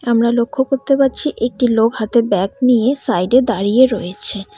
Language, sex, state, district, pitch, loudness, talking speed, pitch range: Bengali, female, West Bengal, Cooch Behar, 235 Hz, -15 LUFS, 170 wpm, 220-260 Hz